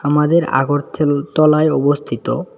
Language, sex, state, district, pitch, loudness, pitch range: Bengali, male, Tripura, West Tripura, 145 Hz, -15 LUFS, 145-155 Hz